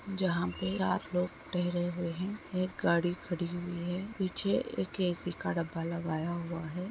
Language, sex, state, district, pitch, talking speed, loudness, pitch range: Hindi, female, Uttar Pradesh, Etah, 175 Hz, 175 wpm, -34 LUFS, 170-185 Hz